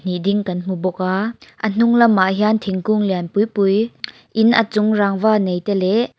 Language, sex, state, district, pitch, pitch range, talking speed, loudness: Mizo, female, Mizoram, Aizawl, 205 Hz, 185-220 Hz, 195 wpm, -17 LUFS